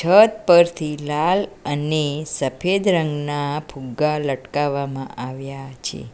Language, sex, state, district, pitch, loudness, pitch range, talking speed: Gujarati, female, Gujarat, Valsad, 150 Hz, -20 LUFS, 135-165 Hz, 100 wpm